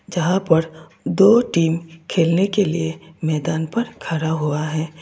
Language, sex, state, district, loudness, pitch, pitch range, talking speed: Hindi, female, Tripura, West Tripura, -19 LUFS, 165 Hz, 160-185 Hz, 145 wpm